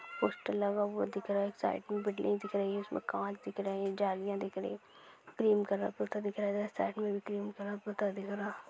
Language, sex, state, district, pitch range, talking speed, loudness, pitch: Hindi, female, Maharashtra, Nagpur, 200-205 Hz, 230 wpm, -36 LUFS, 205 Hz